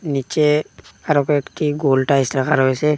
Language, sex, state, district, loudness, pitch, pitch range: Bengali, male, Assam, Hailakandi, -18 LUFS, 145 Hz, 135-150 Hz